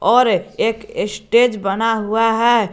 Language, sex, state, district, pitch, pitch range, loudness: Hindi, male, Jharkhand, Garhwa, 225 Hz, 215-235 Hz, -17 LUFS